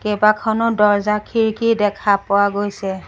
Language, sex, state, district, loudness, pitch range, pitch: Assamese, female, Assam, Sonitpur, -17 LUFS, 200-220 Hz, 210 Hz